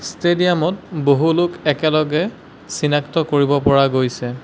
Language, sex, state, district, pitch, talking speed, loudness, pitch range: Assamese, male, Assam, Sonitpur, 155 Hz, 120 wpm, -17 LUFS, 140-175 Hz